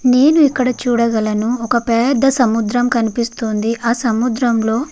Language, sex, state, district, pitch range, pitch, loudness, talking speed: Telugu, female, Andhra Pradesh, Guntur, 225-250 Hz, 235 Hz, -15 LUFS, 120 wpm